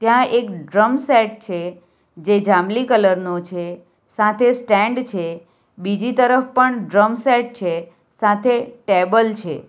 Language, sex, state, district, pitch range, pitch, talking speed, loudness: Gujarati, female, Gujarat, Valsad, 180-240 Hz, 210 Hz, 135 wpm, -17 LUFS